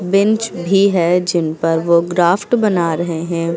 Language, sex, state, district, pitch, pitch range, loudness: Hindi, female, Uttar Pradesh, Lucknow, 175 Hz, 170-195 Hz, -15 LUFS